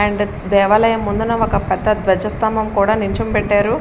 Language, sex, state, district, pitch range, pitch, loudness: Telugu, female, Andhra Pradesh, Srikakulam, 200-220 Hz, 210 Hz, -16 LUFS